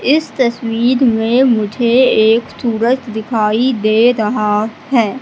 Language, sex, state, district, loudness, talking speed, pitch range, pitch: Hindi, female, Madhya Pradesh, Katni, -14 LUFS, 115 wpm, 220-250 Hz, 235 Hz